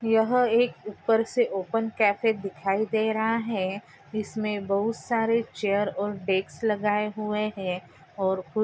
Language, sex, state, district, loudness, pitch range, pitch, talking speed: Hindi, female, Maharashtra, Pune, -26 LUFS, 200-225 Hz, 215 Hz, 140 wpm